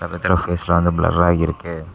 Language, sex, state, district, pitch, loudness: Tamil, male, Tamil Nadu, Namakkal, 85 Hz, -18 LUFS